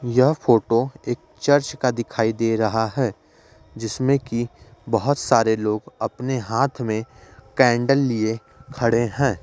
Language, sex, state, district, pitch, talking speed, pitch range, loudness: Maithili, male, Bihar, Begusarai, 120 Hz, 135 wpm, 110-135 Hz, -21 LUFS